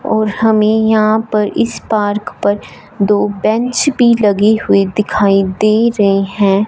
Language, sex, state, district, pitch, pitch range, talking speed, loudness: Hindi, male, Punjab, Fazilka, 210 Hz, 200-220 Hz, 145 wpm, -13 LUFS